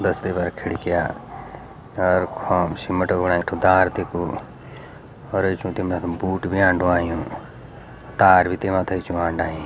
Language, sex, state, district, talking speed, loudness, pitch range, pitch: Garhwali, male, Uttarakhand, Uttarkashi, 150 wpm, -21 LUFS, 85-95 Hz, 90 Hz